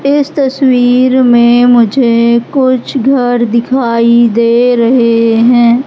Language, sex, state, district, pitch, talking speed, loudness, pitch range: Hindi, female, Madhya Pradesh, Katni, 245 Hz, 100 wpm, -8 LUFS, 235-260 Hz